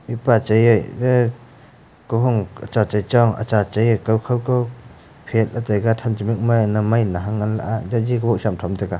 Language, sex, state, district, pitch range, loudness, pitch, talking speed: Wancho, male, Arunachal Pradesh, Longding, 110-120 Hz, -19 LUFS, 115 Hz, 205 wpm